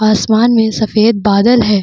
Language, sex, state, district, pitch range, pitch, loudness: Hindi, female, Bihar, Vaishali, 210-230 Hz, 220 Hz, -11 LUFS